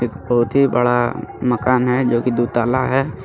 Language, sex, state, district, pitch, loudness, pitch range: Hindi, male, Jharkhand, Garhwa, 125 Hz, -17 LUFS, 120-130 Hz